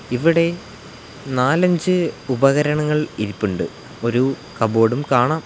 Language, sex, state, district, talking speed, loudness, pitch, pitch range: Malayalam, male, Kerala, Kollam, 75 wpm, -19 LUFS, 135 Hz, 120-155 Hz